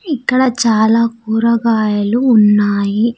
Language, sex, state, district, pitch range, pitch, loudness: Telugu, female, Andhra Pradesh, Sri Satya Sai, 215-240 Hz, 230 Hz, -13 LUFS